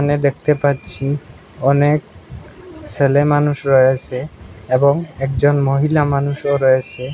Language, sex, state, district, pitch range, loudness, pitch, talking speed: Bengali, male, Assam, Hailakandi, 135-145 Hz, -16 LUFS, 140 Hz, 100 wpm